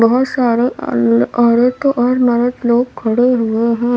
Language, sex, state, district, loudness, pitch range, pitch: Hindi, female, Uttar Pradesh, Lalitpur, -14 LUFS, 230-250 Hz, 240 Hz